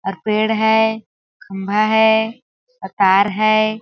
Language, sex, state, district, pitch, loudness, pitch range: Hindi, female, Chhattisgarh, Balrampur, 215 Hz, -16 LUFS, 205-220 Hz